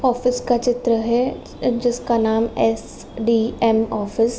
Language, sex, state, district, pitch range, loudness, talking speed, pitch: Hindi, female, Uttar Pradesh, Jalaun, 225-245 Hz, -20 LUFS, 135 wpm, 235 Hz